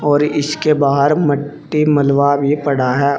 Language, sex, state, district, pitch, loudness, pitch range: Hindi, male, Uttar Pradesh, Saharanpur, 145 Hz, -15 LUFS, 140-150 Hz